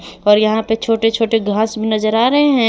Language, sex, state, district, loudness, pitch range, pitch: Hindi, female, Jharkhand, Palamu, -15 LUFS, 215-225 Hz, 225 Hz